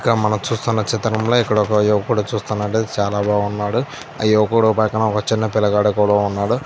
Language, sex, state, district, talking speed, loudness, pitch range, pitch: Telugu, male, Andhra Pradesh, Anantapur, 155 wpm, -18 LUFS, 105-110 Hz, 110 Hz